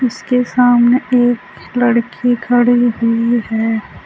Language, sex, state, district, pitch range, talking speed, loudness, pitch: Hindi, female, Uttar Pradesh, Saharanpur, 235-245 Hz, 105 wpm, -14 LUFS, 245 Hz